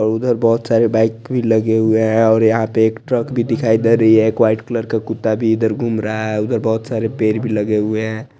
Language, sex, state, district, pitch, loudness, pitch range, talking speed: Hindi, male, Chandigarh, Chandigarh, 110 Hz, -16 LUFS, 110-115 Hz, 250 wpm